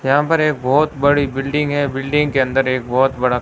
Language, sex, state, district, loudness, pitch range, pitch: Hindi, male, Rajasthan, Bikaner, -17 LUFS, 130-145 Hz, 135 Hz